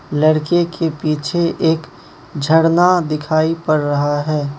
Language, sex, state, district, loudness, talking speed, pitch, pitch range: Hindi, male, Manipur, Imphal West, -16 LUFS, 115 wpm, 155 Hz, 150-165 Hz